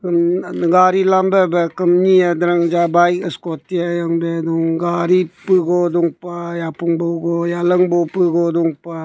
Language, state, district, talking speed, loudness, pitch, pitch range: Nyishi, Arunachal Pradesh, Papum Pare, 145 wpm, -16 LUFS, 175 Hz, 170-180 Hz